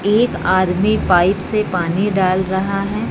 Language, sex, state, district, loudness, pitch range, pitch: Hindi, female, Punjab, Fazilka, -16 LUFS, 185-205 Hz, 190 Hz